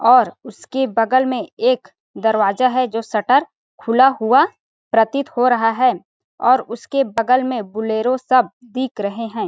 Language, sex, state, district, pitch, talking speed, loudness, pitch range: Hindi, female, Chhattisgarh, Balrampur, 245 Hz, 150 wpm, -17 LUFS, 225-260 Hz